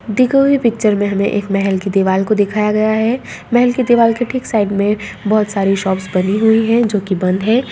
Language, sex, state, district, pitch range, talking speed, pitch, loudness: Hindi, female, Bihar, Saharsa, 195-235 Hz, 225 wpm, 210 Hz, -15 LUFS